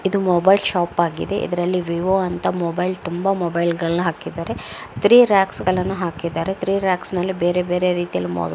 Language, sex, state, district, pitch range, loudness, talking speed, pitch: Kannada, female, Karnataka, Mysore, 170-190 Hz, -20 LUFS, 170 wpm, 180 Hz